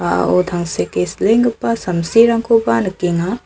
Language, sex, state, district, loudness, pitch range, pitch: Garo, female, Meghalaya, South Garo Hills, -16 LUFS, 170-230 Hz, 180 Hz